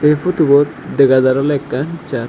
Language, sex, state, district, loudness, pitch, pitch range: Chakma, male, Tripura, Dhalai, -14 LUFS, 140 Hz, 130-150 Hz